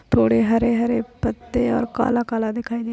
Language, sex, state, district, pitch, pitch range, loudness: Hindi, female, Uttar Pradesh, Hamirpur, 230 Hz, 225-240 Hz, -21 LUFS